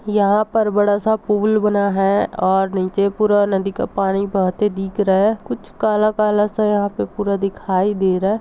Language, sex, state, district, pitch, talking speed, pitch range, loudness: Hindi, female, Chhattisgarh, Rajnandgaon, 205 Hz, 200 wpm, 195-210 Hz, -18 LUFS